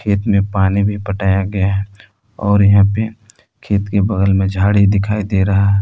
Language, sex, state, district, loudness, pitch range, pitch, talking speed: Hindi, male, Jharkhand, Palamu, -15 LUFS, 95-105 Hz, 100 Hz, 195 wpm